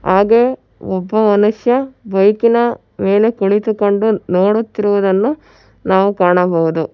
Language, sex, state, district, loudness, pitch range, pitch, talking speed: Kannada, female, Karnataka, Bangalore, -14 LUFS, 190-220 Hz, 205 Hz, 80 wpm